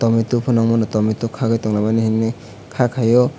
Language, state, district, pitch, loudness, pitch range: Kokborok, Tripura, West Tripura, 115 Hz, -18 LUFS, 110-120 Hz